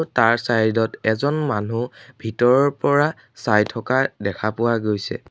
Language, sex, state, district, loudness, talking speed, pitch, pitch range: Assamese, male, Assam, Sonitpur, -20 LUFS, 135 wpm, 115 Hz, 110-130 Hz